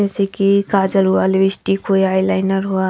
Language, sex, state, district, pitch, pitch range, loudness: Hindi, female, Haryana, Charkhi Dadri, 195 Hz, 190-195 Hz, -16 LUFS